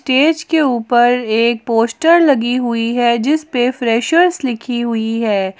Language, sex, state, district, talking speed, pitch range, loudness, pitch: Hindi, female, Jharkhand, Ranchi, 150 wpm, 230-285 Hz, -14 LUFS, 245 Hz